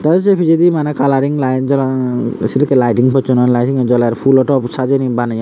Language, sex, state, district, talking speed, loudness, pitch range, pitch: Chakma, male, Tripura, Unakoti, 210 wpm, -13 LUFS, 125-140 Hz, 130 Hz